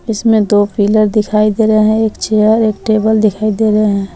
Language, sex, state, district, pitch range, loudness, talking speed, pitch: Hindi, female, Jharkhand, Palamu, 210-220 Hz, -12 LUFS, 215 wpm, 215 Hz